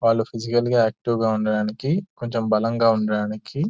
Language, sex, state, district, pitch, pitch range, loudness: Telugu, male, Telangana, Nalgonda, 115 Hz, 110-120 Hz, -22 LUFS